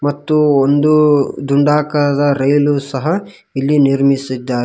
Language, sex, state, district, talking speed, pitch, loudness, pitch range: Kannada, male, Karnataka, Koppal, 90 wpm, 145 Hz, -14 LUFS, 135-150 Hz